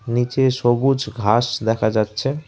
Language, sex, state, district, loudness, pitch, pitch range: Bengali, male, West Bengal, Alipurduar, -19 LUFS, 120 Hz, 110-130 Hz